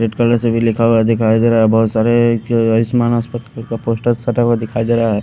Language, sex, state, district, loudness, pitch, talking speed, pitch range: Hindi, male, Haryana, Rohtak, -14 LUFS, 115 Hz, 265 wpm, 115-120 Hz